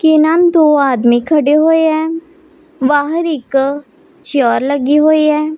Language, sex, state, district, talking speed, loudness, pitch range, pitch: Hindi, male, Punjab, Pathankot, 140 wpm, -12 LUFS, 285-325 Hz, 310 Hz